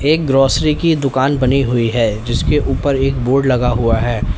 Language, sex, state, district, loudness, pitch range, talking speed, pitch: Hindi, male, Uttar Pradesh, Lalitpur, -15 LUFS, 120-140 Hz, 190 wpm, 130 Hz